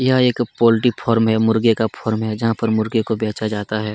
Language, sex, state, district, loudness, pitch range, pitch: Hindi, male, Chhattisgarh, Kabirdham, -18 LUFS, 110-115 Hz, 110 Hz